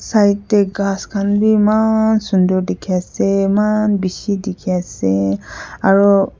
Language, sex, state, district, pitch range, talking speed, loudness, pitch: Nagamese, female, Nagaland, Kohima, 185-210 Hz, 130 wpm, -16 LUFS, 200 Hz